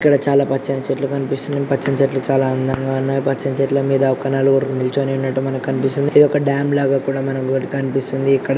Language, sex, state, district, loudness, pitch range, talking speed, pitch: Telugu, male, Andhra Pradesh, Srikakulam, -18 LUFS, 135-140 Hz, 190 wpm, 135 Hz